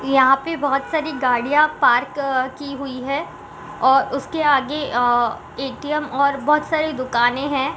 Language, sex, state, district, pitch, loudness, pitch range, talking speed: Hindi, female, Chhattisgarh, Balrampur, 275 Hz, -19 LUFS, 260-295 Hz, 145 wpm